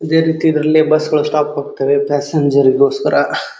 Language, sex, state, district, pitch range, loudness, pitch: Kannada, male, Karnataka, Dharwad, 140-155 Hz, -14 LUFS, 150 Hz